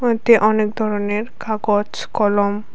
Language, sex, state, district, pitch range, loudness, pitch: Bengali, female, Tripura, West Tripura, 205-220 Hz, -18 LUFS, 215 Hz